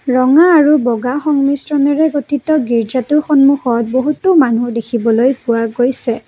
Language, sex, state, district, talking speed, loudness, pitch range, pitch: Assamese, female, Assam, Kamrup Metropolitan, 115 wpm, -13 LUFS, 240-295 Hz, 270 Hz